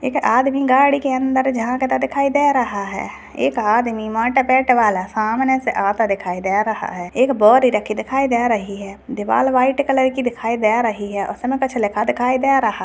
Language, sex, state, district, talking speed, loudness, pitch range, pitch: Hindi, female, Bihar, Purnia, 205 wpm, -17 LUFS, 215-265 Hz, 245 Hz